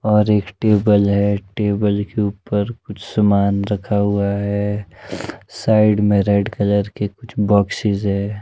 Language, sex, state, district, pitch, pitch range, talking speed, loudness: Hindi, male, Himachal Pradesh, Shimla, 100 Hz, 100-105 Hz, 140 wpm, -18 LUFS